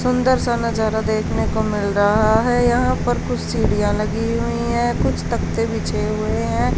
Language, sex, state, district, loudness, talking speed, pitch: Hindi, female, Haryana, Charkhi Dadri, -19 LUFS, 175 wpm, 205 Hz